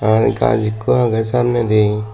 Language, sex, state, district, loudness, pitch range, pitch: Chakma, male, Tripura, Dhalai, -16 LUFS, 105-120 Hz, 110 Hz